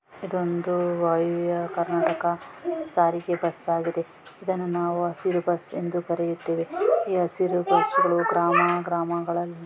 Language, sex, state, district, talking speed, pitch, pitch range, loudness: Kannada, female, Karnataka, Raichur, 105 wpm, 175 Hz, 170-175 Hz, -25 LUFS